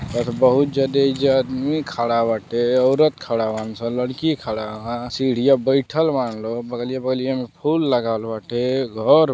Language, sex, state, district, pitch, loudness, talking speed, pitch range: Bhojpuri, male, Uttar Pradesh, Deoria, 130 Hz, -20 LUFS, 160 wpm, 115-135 Hz